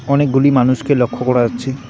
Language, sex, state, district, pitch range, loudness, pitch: Bengali, male, West Bengal, Alipurduar, 125-140 Hz, -15 LUFS, 130 Hz